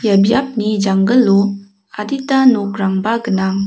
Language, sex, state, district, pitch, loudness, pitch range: Garo, female, Meghalaya, West Garo Hills, 205 Hz, -15 LUFS, 195-230 Hz